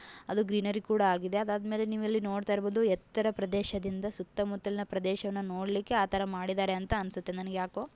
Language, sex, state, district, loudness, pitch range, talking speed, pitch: Kannada, female, Karnataka, Gulbarga, -32 LUFS, 190-210 Hz, 150 wpm, 200 Hz